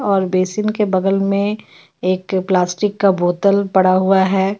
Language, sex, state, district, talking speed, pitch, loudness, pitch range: Hindi, female, Jharkhand, Ranchi, 155 wpm, 195 Hz, -16 LUFS, 185-200 Hz